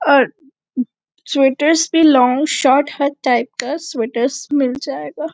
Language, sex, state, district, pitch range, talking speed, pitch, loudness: Hindi, female, Chhattisgarh, Bastar, 250-295 Hz, 125 wpm, 275 Hz, -16 LUFS